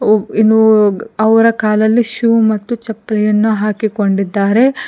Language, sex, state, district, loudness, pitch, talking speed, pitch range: Kannada, female, Karnataka, Koppal, -13 LUFS, 220 Hz, 110 wpm, 210-225 Hz